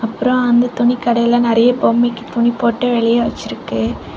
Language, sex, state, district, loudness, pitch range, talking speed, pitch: Tamil, female, Tamil Nadu, Kanyakumari, -15 LUFS, 235-245 Hz, 130 wpm, 240 Hz